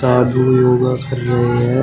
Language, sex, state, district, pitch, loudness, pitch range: Hindi, male, Uttar Pradesh, Shamli, 125 Hz, -15 LUFS, 125-130 Hz